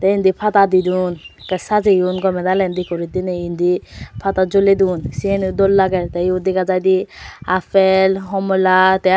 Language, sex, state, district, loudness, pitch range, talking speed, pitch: Chakma, female, Tripura, West Tripura, -16 LUFS, 180-195 Hz, 145 wpm, 185 Hz